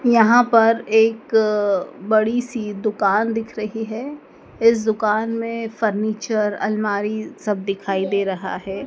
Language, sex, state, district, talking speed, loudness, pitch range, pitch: Hindi, female, Madhya Pradesh, Dhar, 130 wpm, -20 LUFS, 205-225 Hz, 220 Hz